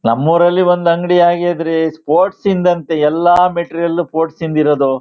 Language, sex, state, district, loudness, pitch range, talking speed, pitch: Kannada, male, Karnataka, Shimoga, -13 LUFS, 160-175 Hz, 165 wpm, 170 Hz